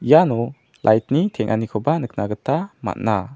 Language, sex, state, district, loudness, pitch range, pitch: Garo, male, Meghalaya, South Garo Hills, -20 LUFS, 110-150 Hz, 120 Hz